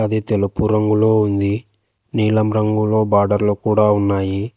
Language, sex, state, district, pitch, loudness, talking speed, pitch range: Telugu, male, Telangana, Hyderabad, 105 Hz, -17 LUFS, 120 wpm, 100-110 Hz